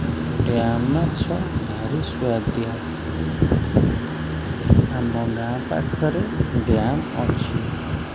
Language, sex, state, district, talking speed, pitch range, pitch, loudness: Odia, male, Odisha, Khordha, 65 wpm, 80-120 Hz, 80 Hz, -22 LUFS